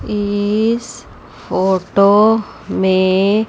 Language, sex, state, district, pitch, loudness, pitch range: Hindi, female, Chandigarh, Chandigarh, 205 Hz, -15 LUFS, 190-215 Hz